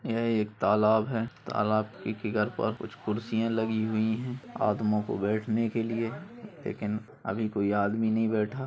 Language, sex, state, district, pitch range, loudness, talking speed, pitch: Hindi, male, Maharashtra, Nagpur, 105-115 Hz, -29 LUFS, 165 wpm, 110 Hz